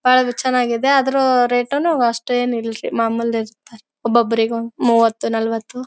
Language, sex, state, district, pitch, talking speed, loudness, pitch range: Kannada, female, Karnataka, Bellary, 235 Hz, 125 wpm, -18 LUFS, 230-255 Hz